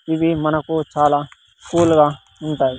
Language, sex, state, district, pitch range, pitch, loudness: Telugu, male, Andhra Pradesh, Sri Satya Sai, 145-160 Hz, 155 Hz, -18 LUFS